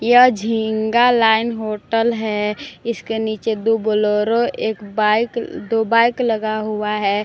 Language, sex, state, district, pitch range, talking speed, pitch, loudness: Hindi, female, Jharkhand, Palamu, 215-230 Hz, 130 wpm, 220 Hz, -18 LUFS